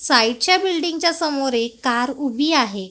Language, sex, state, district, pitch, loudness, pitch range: Marathi, female, Maharashtra, Gondia, 275 Hz, -19 LUFS, 245-330 Hz